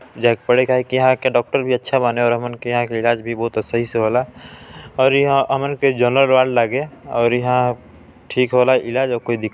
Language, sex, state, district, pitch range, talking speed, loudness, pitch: Chhattisgarhi, male, Chhattisgarh, Balrampur, 120-130 Hz, 215 wpm, -17 LUFS, 125 Hz